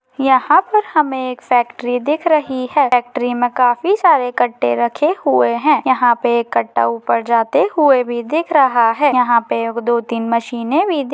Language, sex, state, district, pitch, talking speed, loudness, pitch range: Hindi, female, Maharashtra, Chandrapur, 250 Hz, 190 wpm, -15 LUFS, 235-295 Hz